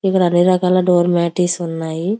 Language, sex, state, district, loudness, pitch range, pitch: Telugu, female, Andhra Pradesh, Visakhapatnam, -16 LUFS, 170-185 Hz, 175 Hz